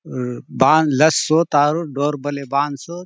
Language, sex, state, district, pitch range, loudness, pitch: Halbi, male, Chhattisgarh, Bastar, 140-155 Hz, -18 LUFS, 145 Hz